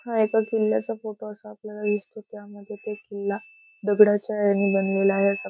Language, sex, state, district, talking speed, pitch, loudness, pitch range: Marathi, female, Maharashtra, Solapur, 155 wpm, 210 Hz, -24 LUFS, 200-215 Hz